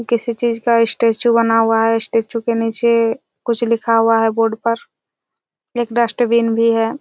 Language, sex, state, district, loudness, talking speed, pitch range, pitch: Hindi, female, Chhattisgarh, Raigarh, -16 LUFS, 170 wpm, 225-235 Hz, 230 Hz